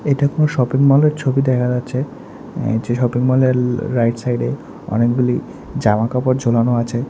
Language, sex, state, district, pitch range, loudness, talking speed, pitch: Bengali, male, Tripura, West Tripura, 120-135 Hz, -17 LUFS, 145 wpm, 125 Hz